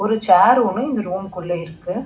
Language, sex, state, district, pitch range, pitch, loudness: Tamil, female, Tamil Nadu, Chennai, 180-240 Hz, 195 Hz, -18 LUFS